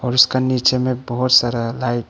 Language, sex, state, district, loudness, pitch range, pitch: Hindi, male, Arunachal Pradesh, Papum Pare, -17 LUFS, 120-130 Hz, 125 Hz